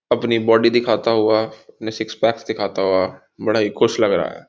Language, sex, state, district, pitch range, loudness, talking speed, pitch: Hindi, male, Uttar Pradesh, Gorakhpur, 110-115 Hz, -18 LUFS, 200 wpm, 110 Hz